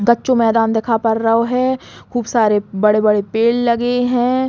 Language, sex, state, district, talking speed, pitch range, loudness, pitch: Bundeli, female, Uttar Pradesh, Hamirpur, 160 wpm, 220-245 Hz, -16 LUFS, 230 Hz